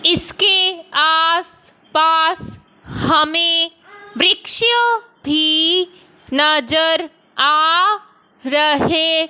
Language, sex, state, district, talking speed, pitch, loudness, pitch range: Hindi, female, Punjab, Fazilka, 60 wpm, 325 Hz, -14 LUFS, 310-365 Hz